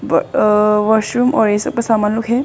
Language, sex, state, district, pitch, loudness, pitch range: Hindi, female, Arunachal Pradesh, Longding, 220 Hz, -15 LUFS, 210-235 Hz